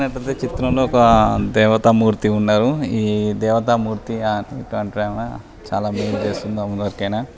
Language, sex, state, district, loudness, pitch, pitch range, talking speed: Telugu, male, Telangana, Nalgonda, -18 LUFS, 110 Hz, 105-115 Hz, 105 wpm